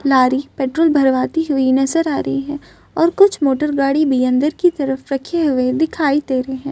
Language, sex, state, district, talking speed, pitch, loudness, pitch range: Hindi, female, Maharashtra, Chandrapur, 185 wpm, 280 Hz, -16 LUFS, 265-310 Hz